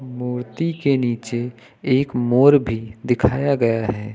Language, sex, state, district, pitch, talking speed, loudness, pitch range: Hindi, male, Uttar Pradesh, Lucknow, 125 Hz, 130 wpm, -20 LUFS, 115-135 Hz